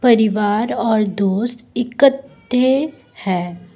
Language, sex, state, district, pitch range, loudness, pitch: Hindi, female, Assam, Kamrup Metropolitan, 205-250 Hz, -18 LUFS, 230 Hz